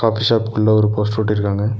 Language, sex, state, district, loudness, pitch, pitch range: Tamil, male, Tamil Nadu, Nilgiris, -17 LUFS, 110 Hz, 105-110 Hz